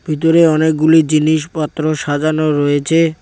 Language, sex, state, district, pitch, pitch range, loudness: Bengali, male, West Bengal, Cooch Behar, 155 Hz, 155-160 Hz, -14 LUFS